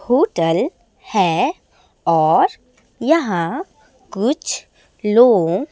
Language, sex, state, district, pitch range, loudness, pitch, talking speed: Hindi, female, Chhattisgarh, Raipur, 190-275 Hz, -17 LUFS, 235 Hz, 65 wpm